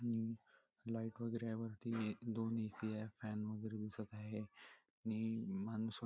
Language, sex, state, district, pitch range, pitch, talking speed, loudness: Marathi, male, Maharashtra, Nagpur, 110-115 Hz, 110 Hz, 130 wpm, -45 LUFS